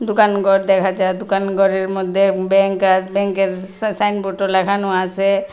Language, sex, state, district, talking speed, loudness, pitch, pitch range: Bengali, female, Tripura, West Tripura, 120 wpm, -17 LUFS, 195 Hz, 190-195 Hz